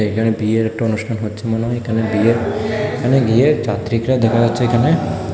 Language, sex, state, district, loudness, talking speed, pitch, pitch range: Bengali, male, Tripura, West Tripura, -17 LUFS, 170 wpm, 115 Hz, 110-120 Hz